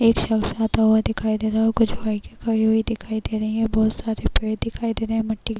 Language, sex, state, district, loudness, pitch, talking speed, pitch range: Hindi, female, Uttar Pradesh, Jyotiba Phule Nagar, -22 LUFS, 220 Hz, 245 wpm, 220-225 Hz